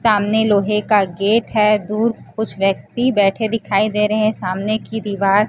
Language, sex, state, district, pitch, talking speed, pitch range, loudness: Hindi, female, Chhattisgarh, Raipur, 210 Hz, 175 wpm, 200-220 Hz, -17 LUFS